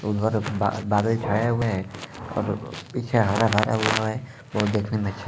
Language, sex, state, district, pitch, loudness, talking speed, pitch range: Hindi, male, Bihar, Sitamarhi, 110 Hz, -24 LUFS, 150 wpm, 105-115 Hz